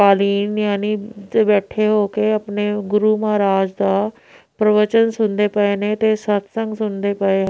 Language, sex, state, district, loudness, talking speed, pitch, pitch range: Punjabi, female, Punjab, Pathankot, -18 LUFS, 130 wpm, 210 Hz, 200-215 Hz